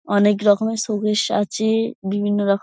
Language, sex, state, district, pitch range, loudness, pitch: Bengali, female, West Bengal, Dakshin Dinajpur, 205-220 Hz, -19 LUFS, 210 Hz